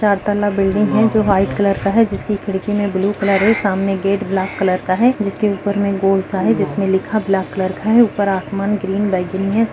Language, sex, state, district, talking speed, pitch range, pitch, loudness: Hindi, female, Uttarakhand, Uttarkashi, 235 wpm, 195-210 Hz, 200 Hz, -17 LUFS